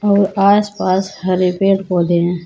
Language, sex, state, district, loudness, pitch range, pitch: Hindi, female, Uttar Pradesh, Saharanpur, -15 LUFS, 180-200 Hz, 190 Hz